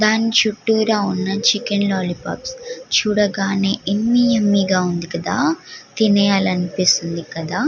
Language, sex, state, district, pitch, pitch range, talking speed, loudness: Telugu, female, Andhra Pradesh, Guntur, 205 Hz, 185-225 Hz, 110 wpm, -18 LUFS